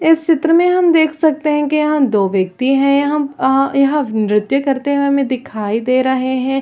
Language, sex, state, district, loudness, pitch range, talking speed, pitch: Hindi, female, Chhattisgarh, Raigarh, -15 LUFS, 260-300 Hz, 210 wpm, 275 Hz